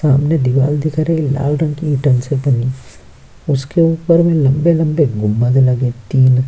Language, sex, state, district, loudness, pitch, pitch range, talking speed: Hindi, male, Bihar, Kishanganj, -14 LUFS, 140 Hz, 130-155 Hz, 165 wpm